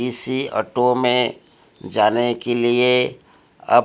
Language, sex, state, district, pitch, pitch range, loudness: Hindi, male, Odisha, Malkangiri, 120 Hz, 120-125 Hz, -19 LUFS